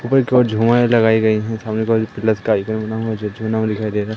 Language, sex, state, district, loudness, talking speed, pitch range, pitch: Hindi, male, Madhya Pradesh, Katni, -17 LUFS, 275 wpm, 110-115 Hz, 110 Hz